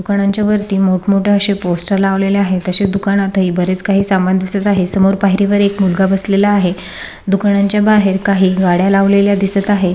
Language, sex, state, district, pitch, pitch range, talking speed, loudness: Marathi, female, Maharashtra, Sindhudurg, 195 Hz, 190-200 Hz, 185 wpm, -13 LUFS